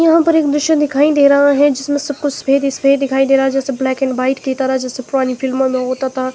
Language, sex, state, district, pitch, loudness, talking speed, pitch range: Hindi, female, Himachal Pradesh, Shimla, 270 Hz, -14 LUFS, 275 wpm, 265-285 Hz